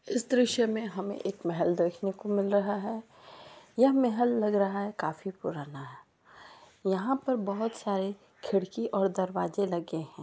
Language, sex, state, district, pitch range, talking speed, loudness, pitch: Marwari, female, Rajasthan, Churu, 190-225 Hz, 160 wpm, -30 LUFS, 200 Hz